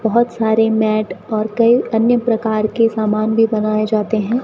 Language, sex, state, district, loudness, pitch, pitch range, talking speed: Hindi, female, Rajasthan, Bikaner, -16 LUFS, 220 Hz, 215-230 Hz, 175 wpm